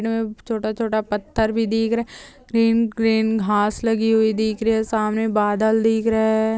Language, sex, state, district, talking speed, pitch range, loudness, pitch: Hindi, female, Uttarakhand, Tehri Garhwal, 175 wpm, 220-225 Hz, -20 LUFS, 220 Hz